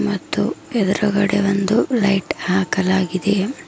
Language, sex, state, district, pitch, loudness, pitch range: Kannada, female, Karnataka, Bidar, 200 Hz, -19 LUFS, 190-205 Hz